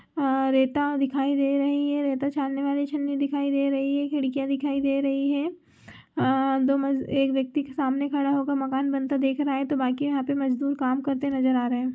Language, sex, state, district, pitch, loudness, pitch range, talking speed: Hindi, female, Chhattisgarh, Raigarh, 275 Hz, -25 LUFS, 270-280 Hz, 215 wpm